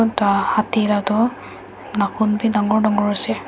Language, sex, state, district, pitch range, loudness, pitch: Nagamese, female, Nagaland, Dimapur, 205-220 Hz, -18 LUFS, 210 Hz